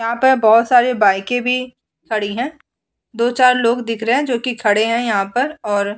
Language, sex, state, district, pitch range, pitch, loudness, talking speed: Hindi, female, Bihar, Vaishali, 220-250 Hz, 240 Hz, -16 LUFS, 200 wpm